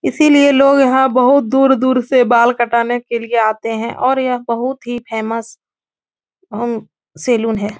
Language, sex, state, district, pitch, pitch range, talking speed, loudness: Hindi, female, Uttar Pradesh, Etah, 240 Hz, 230-265 Hz, 160 wpm, -14 LUFS